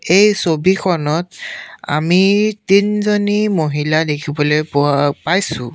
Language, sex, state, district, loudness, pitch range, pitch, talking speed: Assamese, male, Assam, Sonitpur, -15 LUFS, 150-200 Hz, 170 Hz, 85 wpm